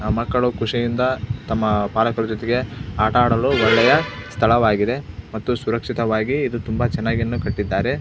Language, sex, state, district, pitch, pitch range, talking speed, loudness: Kannada, male, Karnataka, Belgaum, 115 Hz, 110-120 Hz, 120 wpm, -20 LUFS